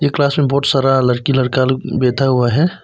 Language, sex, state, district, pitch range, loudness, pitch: Hindi, male, Arunachal Pradesh, Papum Pare, 130-140 Hz, -15 LUFS, 135 Hz